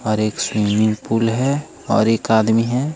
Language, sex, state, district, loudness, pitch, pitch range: Hindi, male, Jharkhand, Ranchi, -18 LUFS, 115 Hz, 110-125 Hz